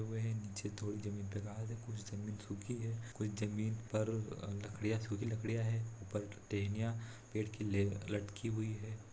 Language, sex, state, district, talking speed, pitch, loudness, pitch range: Hindi, male, Bihar, Saran, 160 wpm, 110 Hz, -41 LUFS, 105-110 Hz